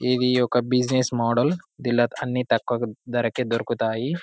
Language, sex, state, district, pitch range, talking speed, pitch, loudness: Telugu, male, Telangana, Karimnagar, 120-125 Hz, 125 wpm, 125 Hz, -23 LUFS